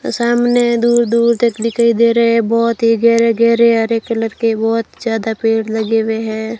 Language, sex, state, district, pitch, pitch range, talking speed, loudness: Hindi, female, Rajasthan, Bikaner, 230 Hz, 225-235 Hz, 210 wpm, -14 LUFS